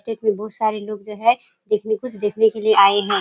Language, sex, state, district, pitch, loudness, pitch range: Hindi, female, Bihar, Kishanganj, 215 Hz, -19 LUFS, 210-220 Hz